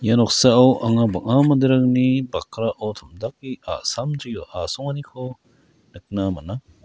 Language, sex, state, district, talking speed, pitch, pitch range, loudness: Garo, male, Meghalaya, West Garo Hills, 95 wpm, 125 Hz, 110-130 Hz, -20 LUFS